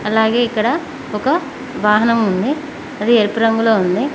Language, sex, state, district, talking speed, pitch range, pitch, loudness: Telugu, female, Telangana, Mahabubabad, 130 wpm, 215-285 Hz, 225 Hz, -16 LUFS